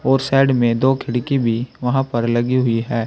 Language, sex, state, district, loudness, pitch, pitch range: Hindi, male, Uttar Pradesh, Saharanpur, -18 LUFS, 125 Hz, 115-135 Hz